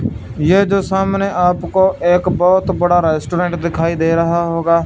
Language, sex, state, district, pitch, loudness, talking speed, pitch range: Hindi, male, Punjab, Fazilka, 175 Hz, -15 LUFS, 150 wpm, 165-185 Hz